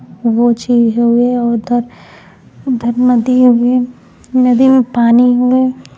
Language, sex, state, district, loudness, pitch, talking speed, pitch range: Hindi, female, Uttar Pradesh, Ghazipur, -12 LUFS, 245 Hz, 110 wpm, 235-250 Hz